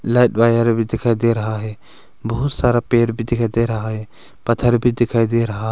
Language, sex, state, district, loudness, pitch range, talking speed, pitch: Hindi, male, Arunachal Pradesh, Longding, -18 LUFS, 110-120 Hz, 210 wpm, 115 Hz